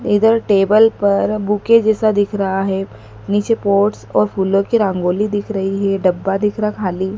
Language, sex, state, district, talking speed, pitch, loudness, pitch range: Hindi, female, Madhya Pradesh, Dhar, 175 wpm, 205 Hz, -16 LUFS, 195-210 Hz